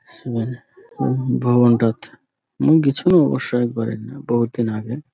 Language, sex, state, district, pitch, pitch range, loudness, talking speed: Bengali, male, West Bengal, Dakshin Dinajpur, 120 Hz, 115-140 Hz, -19 LUFS, 115 wpm